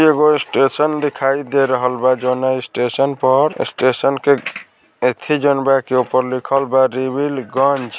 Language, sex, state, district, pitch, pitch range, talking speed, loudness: Bhojpuri, male, Bihar, Saran, 135 Hz, 130-140 Hz, 150 wpm, -16 LUFS